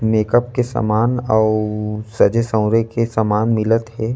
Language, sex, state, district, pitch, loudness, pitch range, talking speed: Chhattisgarhi, male, Chhattisgarh, Rajnandgaon, 110 Hz, -17 LUFS, 110-115 Hz, 145 wpm